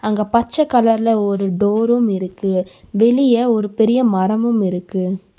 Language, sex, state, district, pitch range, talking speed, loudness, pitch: Tamil, female, Tamil Nadu, Nilgiris, 195-235 Hz, 125 wpm, -16 LUFS, 215 Hz